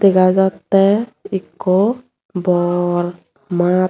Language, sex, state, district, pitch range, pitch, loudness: Chakma, female, Tripura, Unakoti, 175-195 Hz, 185 Hz, -17 LUFS